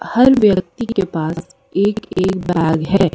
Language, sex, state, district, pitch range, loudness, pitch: Hindi, female, Madhya Pradesh, Bhopal, 170-210 Hz, -16 LUFS, 185 Hz